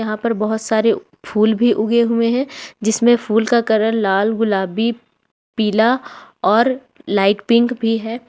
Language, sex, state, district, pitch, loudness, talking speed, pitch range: Hindi, female, Jharkhand, Ranchi, 225 Hz, -17 LUFS, 150 wpm, 215-235 Hz